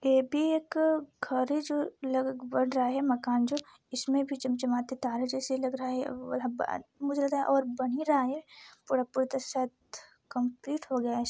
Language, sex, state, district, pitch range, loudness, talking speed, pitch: Hindi, female, Chhattisgarh, Sarguja, 255-280 Hz, -31 LUFS, 155 wpm, 265 Hz